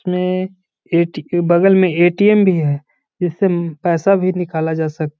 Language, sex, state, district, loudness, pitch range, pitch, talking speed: Hindi, male, Bihar, Gaya, -16 LUFS, 160-185 Hz, 175 Hz, 185 wpm